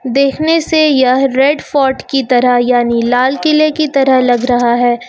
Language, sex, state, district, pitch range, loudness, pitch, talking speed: Hindi, female, Uttar Pradesh, Lucknow, 245-290 Hz, -11 LUFS, 265 Hz, 175 wpm